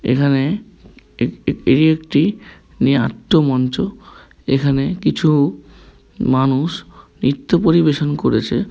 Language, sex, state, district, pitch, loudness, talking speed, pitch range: Bengali, male, West Bengal, Kolkata, 150 Hz, -17 LUFS, 90 wpm, 135-170 Hz